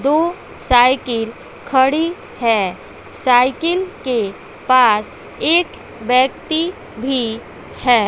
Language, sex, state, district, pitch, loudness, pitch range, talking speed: Hindi, female, Bihar, West Champaran, 255 Hz, -17 LUFS, 235-325 Hz, 80 wpm